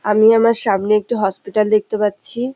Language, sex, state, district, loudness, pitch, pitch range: Bengali, female, West Bengal, North 24 Parganas, -16 LUFS, 215 Hz, 210-230 Hz